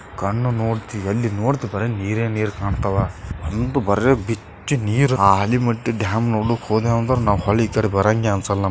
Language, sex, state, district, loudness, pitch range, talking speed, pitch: Kannada, male, Karnataka, Bijapur, -20 LUFS, 100-115 Hz, 150 wpm, 110 Hz